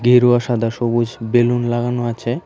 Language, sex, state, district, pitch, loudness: Bengali, male, Tripura, West Tripura, 120 Hz, -17 LUFS